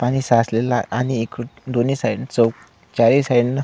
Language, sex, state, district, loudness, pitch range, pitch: Marathi, male, Maharashtra, Solapur, -19 LUFS, 115-130 Hz, 120 Hz